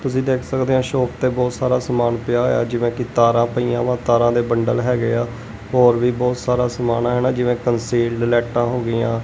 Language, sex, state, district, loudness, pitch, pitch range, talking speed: Punjabi, male, Punjab, Kapurthala, -18 LUFS, 120 Hz, 120-125 Hz, 215 wpm